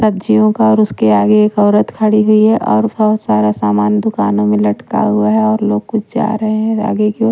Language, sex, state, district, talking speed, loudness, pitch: Hindi, female, Haryana, Rohtak, 230 wpm, -13 LUFS, 155 Hz